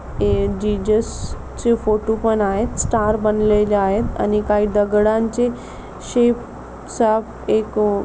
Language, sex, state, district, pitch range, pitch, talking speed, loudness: Marathi, female, Maharashtra, Pune, 210-225 Hz, 215 Hz, 120 wpm, -18 LUFS